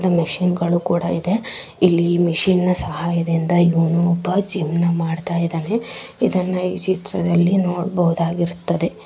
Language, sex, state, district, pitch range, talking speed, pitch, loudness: Kannada, female, Karnataka, Gulbarga, 170-185 Hz, 105 wpm, 175 Hz, -19 LUFS